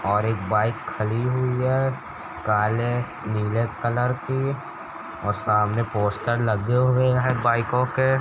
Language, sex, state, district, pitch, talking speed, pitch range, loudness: Hindi, male, Uttar Pradesh, Jalaun, 120 Hz, 140 wpm, 105-125 Hz, -23 LUFS